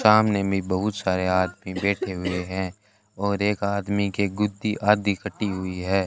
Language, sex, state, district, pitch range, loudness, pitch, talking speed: Hindi, male, Rajasthan, Bikaner, 95-105 Hz, -24 LUFS, 100 Hz, 170 wpm